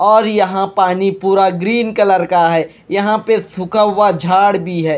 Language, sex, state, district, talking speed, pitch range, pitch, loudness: Hindi, male, Punjab, Kapurthala, 180 wpm, 185-210 Hz, 195 Hz, -14 LUFS